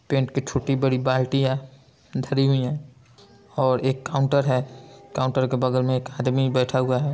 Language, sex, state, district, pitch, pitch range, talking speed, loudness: Hindi, male, Bihar, Saran, 130 Hz, 130-135 Hz, 170 wpm, -23 LUFS